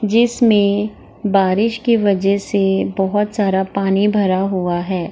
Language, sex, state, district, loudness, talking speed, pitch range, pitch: Hindi, female, Bihar, Gaya, -16 LUFS, 130 wpm, 190-210 Hz, 200 Hz